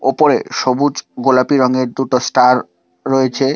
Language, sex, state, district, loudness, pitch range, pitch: Bengali, male, West Bengal, Alipurduar, -14 LUFS, 125-135 Hz, 130 Hz